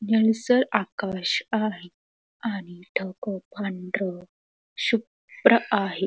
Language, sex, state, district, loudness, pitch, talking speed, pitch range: Marathi, female, Karnataka, Belgaum, -25 LUFS, 200 Hz, 90 wpm, 185-220 Hz